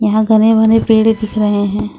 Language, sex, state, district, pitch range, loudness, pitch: Hindi, female, Jharkhand, Ranchi, 210-220 Hz, -12 LUFS, 215 Hz